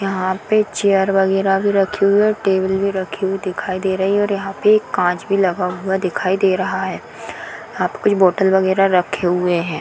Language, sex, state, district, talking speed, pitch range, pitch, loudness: Hindi, female, Bihar, Darbhanga, 230 wpm, 185-195 Hz, 190 Hz, -17 LUFS